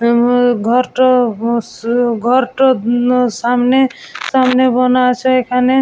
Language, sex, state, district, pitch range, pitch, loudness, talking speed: Bengali, female, West Bengal, Jalpaiguri, 240-255 Hz, 250 Hz, -13 LUFS, 105 wpm